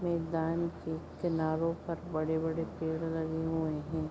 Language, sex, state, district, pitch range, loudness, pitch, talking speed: Hindi, female, Bihar, Begusarai, 160-165 Hz, -34 LUFS, 160 Hz, 130 wpm